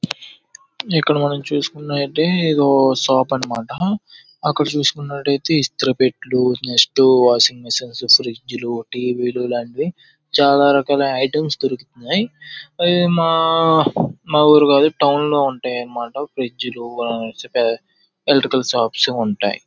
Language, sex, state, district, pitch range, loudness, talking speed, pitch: Telugu, male, Andhra Pradesh, Srikakulam, 125-150 Hz, -17 LUFS, 90 wpm, 140 Hz